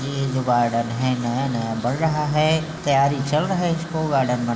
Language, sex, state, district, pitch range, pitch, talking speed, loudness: Chhattisgarhi, male, Chhattisgarh, Bilaspur, 120-155 Hz, 135 Hz, 195 wpm, -21 LUFS